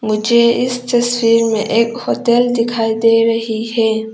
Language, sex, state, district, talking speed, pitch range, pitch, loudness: Hindi, female, Arunachal Pradesh, Papum Pare, 145 wpm, 225-235 Hz, 230 Hz, -14 LUFS